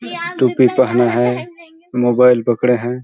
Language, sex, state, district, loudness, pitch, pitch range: Hindi, male, Chhattisgarh, Balrampur, -15 LUFS, 125 Hz, 120-130 Hz